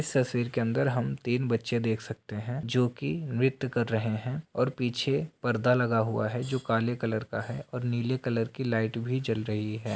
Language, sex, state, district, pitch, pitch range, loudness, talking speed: Hindi, male, Bihar, Bhagalpur, 120 Hz, 115-130 Hz, -29 LUFS, 215 wpm